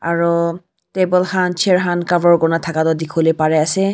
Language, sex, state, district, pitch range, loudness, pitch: Nagamese, female, Nagaland, Kohima, 165-180 Hz, -16 LUFS, 170 Hz